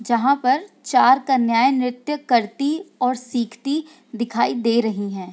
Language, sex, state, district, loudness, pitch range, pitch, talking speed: Hindi, female, Bihar, Sitamarhi, -20 LUFS, 235-275 Hz, 250 Hz, 135 wpm